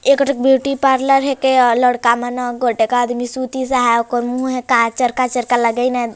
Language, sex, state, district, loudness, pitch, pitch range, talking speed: Chhattisgarhi, female, Chhattisgarh, Jashpur, -16 LUFS, 250 Hz, 240-260 Hz, 195 wpm